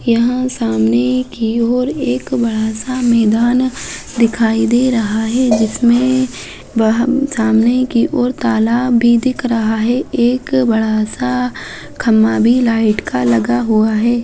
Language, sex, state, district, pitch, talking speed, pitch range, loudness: Hindi, female, Bihar, Lakhisarai, 230 Hz, 125 wpm, 220-245 Hz, -14 LUFS